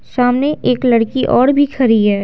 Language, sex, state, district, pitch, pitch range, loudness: Hindi, female, Bihar, Patna, 250 Hz, 230-270 Hz, -13 LUFS